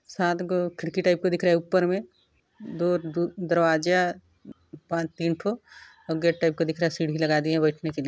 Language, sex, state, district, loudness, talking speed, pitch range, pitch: Hindi, female, Chhattisgarh, Sarguja, -25 LUFS, 225 wpm, 160-175 Hz, 170 Hz